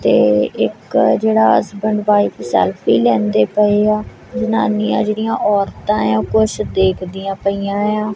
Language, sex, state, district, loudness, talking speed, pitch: Punjabi, female, Punjab, Kapurthala, -16 LUFS, 145 wpm, 200 Hz